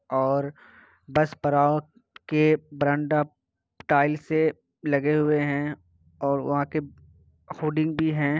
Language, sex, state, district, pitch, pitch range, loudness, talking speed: Hindi, male, Bihar, Kishanganj, 145 Hz, 140-155 Hz, -25 LUFS, 115 wpm